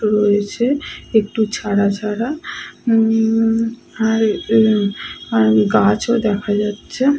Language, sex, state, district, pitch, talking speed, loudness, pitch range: Bengali, female, West Bengal, Purulia, 220 Hz, 90 wpm, -17 LUFS, 205-230 Hz